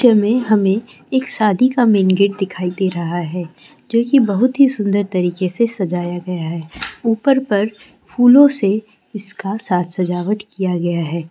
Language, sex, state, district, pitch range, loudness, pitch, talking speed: Hindi, female, Bihar, Purnia, 180-230 Hz, -16 LUFS, 200 Hz, 170 wpm